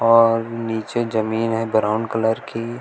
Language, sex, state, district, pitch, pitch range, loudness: Hindi, male, Uttar Pradesh, Shamli, 115 Hz, 110-115 Hz, -20 LUFS